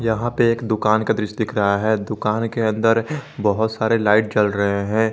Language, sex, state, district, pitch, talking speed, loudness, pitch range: Hindi, male, Jharkhand, Garhwa, 110 Hz, 210 wpm, -19 LUFS, 105-115 Hz